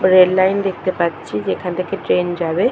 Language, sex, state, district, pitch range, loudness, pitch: Bengali, female, West Bengal, Purulia, 175-185 Hz, -18 LUFS, 185 Hz